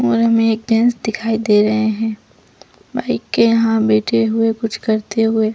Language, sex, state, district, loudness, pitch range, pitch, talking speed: Hindi, female, Chhattisgarh, Bastar, -16 LUFS, 220-225 Hz, 225 Hz, 185 wpm